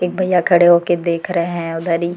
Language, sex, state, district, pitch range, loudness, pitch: Hindi, female, Jharkhand, Deoghar, 170-175 Hz, -16 LUFS, 175 Hz